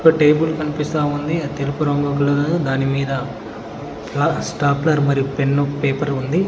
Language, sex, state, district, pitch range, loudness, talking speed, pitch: Telugu, male, Telangana, Mahabubabad, 140-150 Hz, -19 LUFS, 140 wpm, 145 Hz